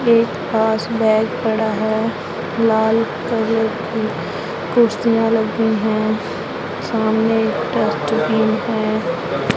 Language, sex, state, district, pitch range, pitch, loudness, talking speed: Hindi, female, Punjab, Pathankot, 220-225 Hz, 220 Hz, -18 LUFS, 90 wpm